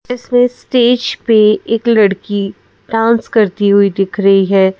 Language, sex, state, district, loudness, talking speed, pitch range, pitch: Hindi, female, Madhya Pradesh, Bhopal, -12 LUFS, 140 wpm, 195-235 Hz, 215 Hz